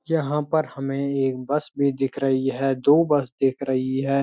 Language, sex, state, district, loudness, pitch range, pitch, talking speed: Hindi, male, Uttarakhand, Uttarkashi, -23 LUFS, 135-145 Hz, 135 Hz, 200 wpm